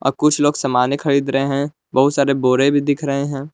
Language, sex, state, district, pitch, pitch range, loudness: Hindi, male, Jharkhand, Palamu, 140 Hz, 135-145 Hz, -17 LUFS